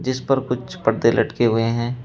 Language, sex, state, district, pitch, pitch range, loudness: Hindi, male, Uttar Pradesh, Shamli, 125 Hz, 120-130 Hz, -20 LUFS